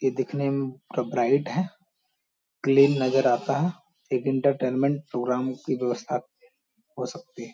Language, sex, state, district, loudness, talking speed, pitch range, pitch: Hindi, male, Bihar, Jamui, -26 LUFS, 145 wpm, 130-175 Hz, 140 Hz